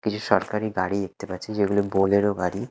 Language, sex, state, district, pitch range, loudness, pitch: Bengali, male, Odisha, Khordha, 95-105 Hz, -24 LUFS, 100 Hz